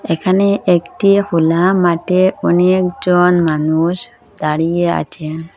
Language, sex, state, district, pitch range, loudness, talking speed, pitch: Bengali, female, Assam, Hailakandi, 165-185 Hz, -14 LUFS, 95 wpm, 175 Hz